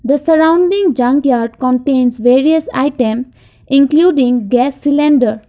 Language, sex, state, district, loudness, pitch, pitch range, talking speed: English, female, Assam, Kamrup Metropolitan, -12 LUFS, 265 Hz, 245-295 Hz, 100 wpm